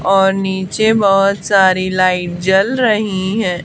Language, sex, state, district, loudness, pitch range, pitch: Hindi, female, Haryana, Charkhi Dadri, -14 LUFS, 185-200 Hz, 195 Hz